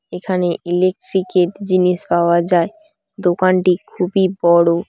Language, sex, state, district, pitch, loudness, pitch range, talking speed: Bengali, female, West Bengal, Dakshin Dinajpur, 180 Hz, -16 LUFS, 175-190 Hz, 110 wpm